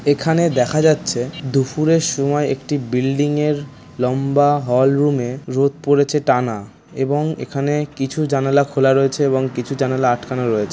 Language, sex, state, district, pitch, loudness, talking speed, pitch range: Bengali, male, West Bengal, North 24 Parganas, 140 Hz, -18 LUFS, 140 wpm, 130-145 Hz